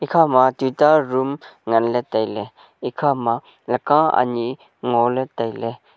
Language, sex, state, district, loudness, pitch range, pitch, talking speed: Wancho, male, Arunachal Pradesh, Longding, -19 LUFS, 115-140 Hz, 125 Hz, 100 wpm